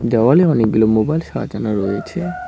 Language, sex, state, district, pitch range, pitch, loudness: Bengali, male, West Bengal, Cooch Behar, 110-170 Hz, 115 Hz, -16 LUFS